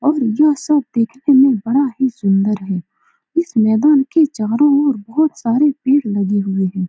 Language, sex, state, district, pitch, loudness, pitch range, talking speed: Hindi, female, Bihar, Saran, 265 Hz, -15 LUFS, 215-290 Hz, 185 wpm